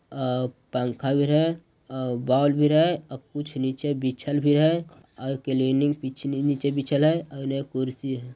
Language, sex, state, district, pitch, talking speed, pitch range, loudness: Magahi, male, Bihar, Jahanabad, 140 Hz, 170 wpm, 130-145 Hz, -25 LUFS